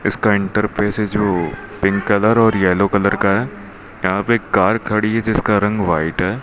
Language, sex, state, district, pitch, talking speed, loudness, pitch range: Hindi, male, Rajasthan, Bikaner, 100 Hz, 185 wpm, -17 LUFS, 100-105 Hz